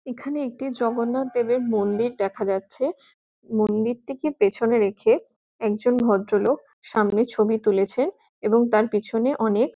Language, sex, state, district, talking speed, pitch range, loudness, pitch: Bengali, female, West Bengal, Jhargram, 130 wpm, 210-255 Hz, -23 LUFS, 230 Hz